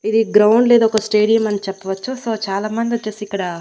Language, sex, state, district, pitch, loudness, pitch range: Telugu, female, Andhra Pradesh, Annamaya, 215 Hz, -17 LUFS, 200-225 Hz